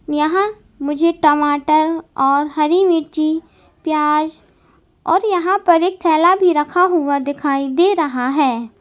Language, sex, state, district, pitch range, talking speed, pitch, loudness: Hindi, female, Uttar Pradesh, Lalitpur, 295-350 Hz, 120 wpm, 310 Hz, -16 LUFS